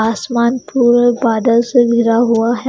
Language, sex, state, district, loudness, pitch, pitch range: Hindi, female, Chandigarh, Chandigarh, -13 LUFS, 235 Hz, 230-245 Hz